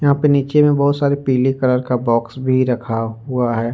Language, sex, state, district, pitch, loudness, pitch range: Hindi, male, Jharkhand, Ranchi, 130 Hz, -17 LUFS, 120-140 Hz